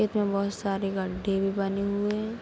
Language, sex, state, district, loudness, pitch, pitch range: Hindi, female, Bihar, Kishanganj, -28 LUFS, 200 Hz, 195-205 Hz